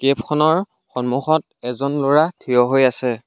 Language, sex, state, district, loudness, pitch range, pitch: Assamese, male, Assam, Sonitpur, -18 LUFS, 125-150 Hz, 135 Hz